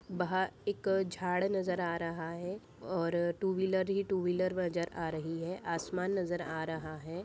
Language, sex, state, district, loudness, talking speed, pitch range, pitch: Hindi, female, Bihar, Saharsa, -35 LUFS, 175 wpm, 170-190 Hz, 180 Hz